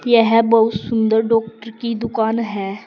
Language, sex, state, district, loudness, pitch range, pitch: Hindi, female, Uttar Pradesh, Saharanpur, -17 LUFS, 220-230 Hz, 225 Hz